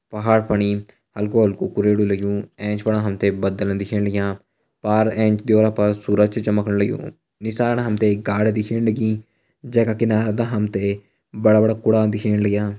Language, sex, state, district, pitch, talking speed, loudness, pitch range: Garhwali, male, Uttarakhand, Uttarkashi, 105 Hz, 175 wpm, -20 LUFS, 100-110 Hz